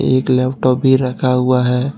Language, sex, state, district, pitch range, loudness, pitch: Hindi, male, Jharkhand, Ranchi, 125-130 Hz, -15 LUFS, 130 Hz